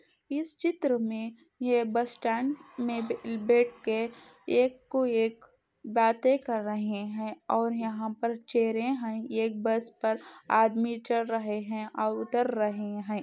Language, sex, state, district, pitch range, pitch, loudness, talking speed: Hindi, female, Jharkhand, Sahebganj, 220-240 Hz, 230 Hz, -30 LUFS, 145 wpm